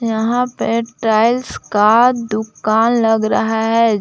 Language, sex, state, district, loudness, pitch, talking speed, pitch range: Hindi, female, Jharkhand, Palamu, -15 LUFS, 225 Hz, 120 wpm, 220-235 Hz